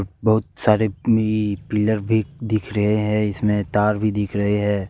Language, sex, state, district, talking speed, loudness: Hindi, male, Jharkhand, Deoghar, 170 wpm, -20 LUFS